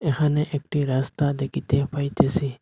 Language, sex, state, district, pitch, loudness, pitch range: Bengali, male, Assam, Hailakandi, 140 Hz, -24 LUFS, 135-145 Hz